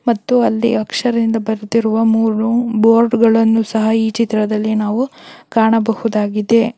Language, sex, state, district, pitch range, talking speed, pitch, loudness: Kannada, female, Karnataka, Belgaum, 220-230 Hz, 105 wpm, 225 Hz, -15 LUFS